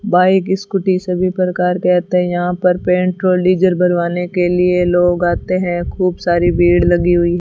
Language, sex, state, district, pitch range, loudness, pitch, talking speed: Hindi, female, Rajasthan, Bikaner, 175-185 Hz, -14 LUFS, 180 Hz, 185 wpm